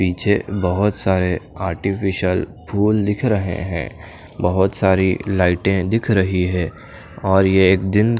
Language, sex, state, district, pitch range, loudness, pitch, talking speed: Hindi, male, Chandigarh, Chandigarh, 90-100 Hz, -18 LUFS, 95 Hz, 125 wpm